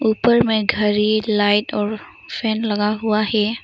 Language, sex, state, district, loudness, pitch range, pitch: Hindi, female, Arunachal Pradesh, Lower Dibang Valley, -18 LUFS, 210-220 Hz, 215 Hz